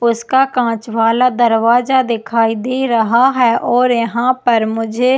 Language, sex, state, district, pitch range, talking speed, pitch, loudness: Hindi, female, Chhattisgarh, Jashpur, 230-250 Hz, 140 wpm, 235 Hz, -14 LUFS